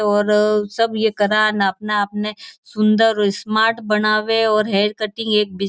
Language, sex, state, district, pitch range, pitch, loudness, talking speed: Marwari, female, Rajasthan, Churu, 210-215 Hz, 215 Hz, -17 LUFS, 160 wpm